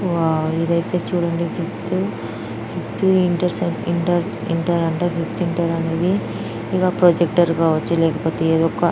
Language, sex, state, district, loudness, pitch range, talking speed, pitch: Telugu, female, Andhra Pradesh, Chittoor, -20 LUFS, 165-175 Hz, 75 wpm, 170 Hz